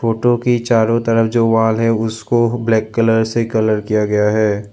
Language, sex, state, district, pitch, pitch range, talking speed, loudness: Hindi, male, Assam, Sonitpur, 115 Hz, 110-115 Hz, 190 wpm, -15 LUFS